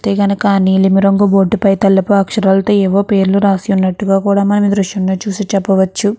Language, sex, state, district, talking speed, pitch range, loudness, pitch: Telugu, female, Andhra Pradesh, Chittoor, 145 wpm, 195-200 Hz, -12 LUFS, 195 Hz